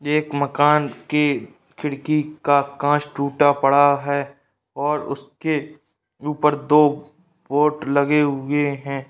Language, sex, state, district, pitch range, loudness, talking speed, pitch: Hindi, male, Bihar, Saharsa, 140-150 Hz, -20 LUFS, 120 wpm, 145 Hz